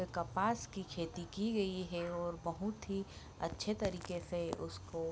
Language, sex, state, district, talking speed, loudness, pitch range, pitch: Hindi, female, Bihar, Bhagalpur, 165 wpm, -40 LUFS, 170-195 Hz, 175 Hz